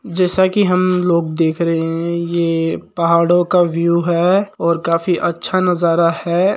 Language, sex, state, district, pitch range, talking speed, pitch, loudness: Marwari, male, Rajasthan, Nagaur, 170-180 Hz, 155 wpm, 170 Hz, -16 LUFS